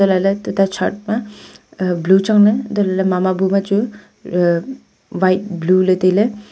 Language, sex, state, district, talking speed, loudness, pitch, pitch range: Wancho, female, Arunachal Pradesh, Longding, 130 wpm, -16 LUFS, 195 Hz, 185-210 Hz